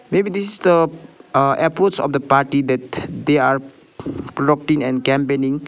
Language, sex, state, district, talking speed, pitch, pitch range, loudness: English, male, Sikkim, Gangtok, 150 wpm, 140 Hz, 135-165 Hz, -18 LUFS